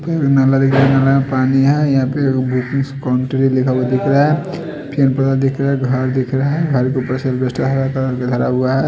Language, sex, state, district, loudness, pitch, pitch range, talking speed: Hindi, male, Odisha, Sambalpur, -16 LUFS, 135 Hz, 130-140 Hz, 210 wpm